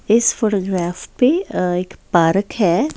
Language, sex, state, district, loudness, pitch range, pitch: Hindi, female, Bihar, Patna, -18 LUFS, 180-235 Hz, 195 Hz